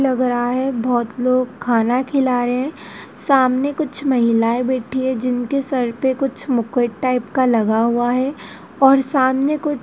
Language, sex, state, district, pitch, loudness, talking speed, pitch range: Hindi, female, Madhya Pradesh, Dhar, 255 Hz, -18 LUFS, 165 wpm, 245-270 Hz